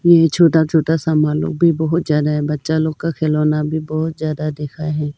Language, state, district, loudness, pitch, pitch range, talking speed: Hindi, Arunachal Pradesh, Lower Dibang Valley, -17 LUFS, 155 Hz, 150-160 Hz, 185 wpm